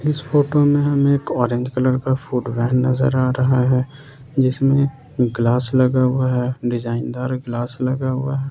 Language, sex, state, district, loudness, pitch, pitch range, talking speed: Hindi, male, Jharkhand, Ranchi, -19 LUFS, 130 Hz, 125-135 Hz, 175 wpm